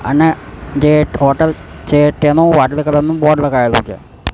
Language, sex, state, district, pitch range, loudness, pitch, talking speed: Gujarati, male, Gujarat, Gandhinagar, 130-150 Hz, -12 LUFS, 150 Hz, 140 wpm